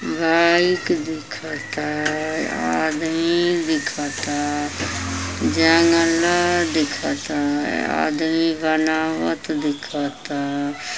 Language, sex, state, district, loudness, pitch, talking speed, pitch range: Bhojpuri, female, Uttar Pradesh, Ghazipur, -20 LUFS, 155 Hz, 50 wpm, 145-165 Hz